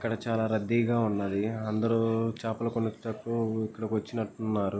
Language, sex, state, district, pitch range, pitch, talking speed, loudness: Telugu, male, Andhra Pradesh, Guntur, 110-115 Hz, 110 Hz, 110 wpm, -30 LUFS